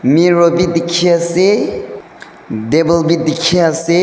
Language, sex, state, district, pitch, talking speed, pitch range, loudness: Nagamese, male, Nagaland, Dimapur, 170 Hz, 90 wpm, 165-175 Hz, -12 LUFS